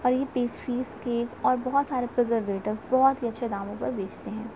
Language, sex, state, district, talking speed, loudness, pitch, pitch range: Hindi, female, Uttar Pradesh, Gorakhpur, 160 wpm, -27 LUFS, 240 Hz, 220-255 Hz